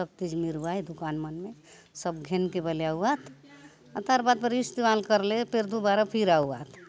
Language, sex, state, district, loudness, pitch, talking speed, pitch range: Halbi, female, Chhattisgarh, Bastar, -28 LUFS, 180 Hz, 200 wpm, 160-220 Hz